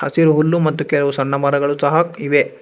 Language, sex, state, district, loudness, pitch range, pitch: Kannada, male, Karnataka, Bangalore, -16 LUFS, 140-170 Hz, 155 Hz